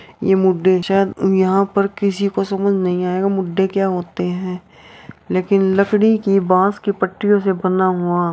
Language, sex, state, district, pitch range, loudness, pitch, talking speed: Hindi, female, Uttar Pradesh, Jyotiba Phule Nagar, 185-195 Hz, -17 LUFS, 190 Hz, 175 wpm